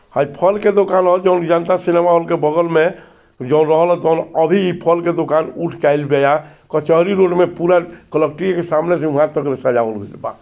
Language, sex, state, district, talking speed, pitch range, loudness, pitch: Bhojpuri, male, Bihar, Gopalganj, 195 wpm, 155-175 Hz, -15 LUFS, 165 Hz